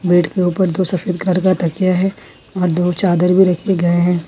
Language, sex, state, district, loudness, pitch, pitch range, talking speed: Hindi, female, Jharkhand, Ranchi, -16 LUFS, 180 Hz, 175-185 Hz, 225 wpm